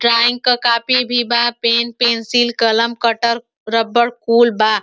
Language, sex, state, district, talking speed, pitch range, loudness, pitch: Bhojpuri, female, Uttar Pradesh, Ghazipur, 160 wpm, 230-240 Hz, -15 LUFS, 235 Hz